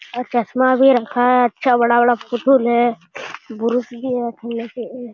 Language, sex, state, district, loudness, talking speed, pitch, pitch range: Hindi, male, Bihar, Jamui, -17 LUFS, 105 wpm, 240 Hz, 235-250 Hz